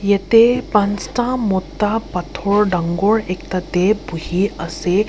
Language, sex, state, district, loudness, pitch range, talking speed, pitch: Nagamese, female, Nagaland, Kohima, -18 LUFS, 180-215 Hz, 105 wpm, 200 Hz